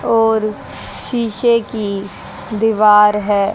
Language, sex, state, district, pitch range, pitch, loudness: Hindi, female, Haryana, Jhajjar, 210-225 Hz, 215 Hz, -15 LUFS